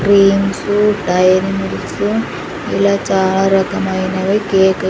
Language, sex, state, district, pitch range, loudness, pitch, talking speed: Telugu, female, Andhra Pradesh, Sri Satya Sai, 190-200 Hz, -14 LUFS, 195 Hz, 100 wpm